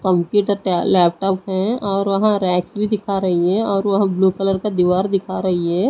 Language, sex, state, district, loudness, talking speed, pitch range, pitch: Hindi, female, Odisha, Nuapada, -18 LUFS, 195 wpm, 185-200 Hz, 195 Hz